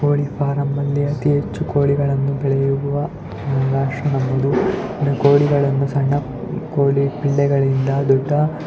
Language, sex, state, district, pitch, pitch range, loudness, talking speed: Kannada, male, Karnataka, Shimoga, 140 Hz, 135-145 Hz, -18 LUFS, 90 wpm